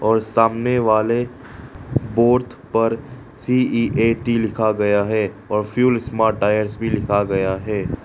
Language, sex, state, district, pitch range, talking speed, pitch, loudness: Hindi, male, Arunachal Pradesh, Lower Dibang Valley, 105-120 Hz, 120 wpm, 115 Hz, -19 LUFS